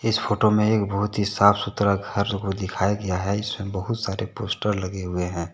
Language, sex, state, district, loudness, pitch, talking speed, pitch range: Hindi, male, Jharkhand, Deoghar, -23 LUFS, 100 Hz, 215 wpm, 95-105 Hz